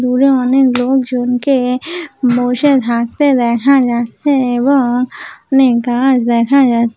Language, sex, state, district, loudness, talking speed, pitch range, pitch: Bengali, female, West Bengal, Dakshin Dinajpur, -13 LUFS, 105 wpm, 245-270 Hz, 255 Hz